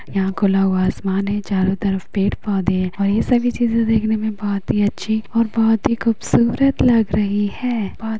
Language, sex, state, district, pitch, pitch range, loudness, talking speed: Hindi, female, Uttar Pradesh, Hamirpur, 205 Hz, 195-225 Hz, -19 LUFS, 195 wpm